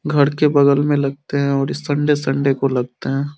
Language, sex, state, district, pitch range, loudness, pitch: Hindi, male, Bihar, Samastipur, 135-145 Hz, -17 LUFS, 140 Hz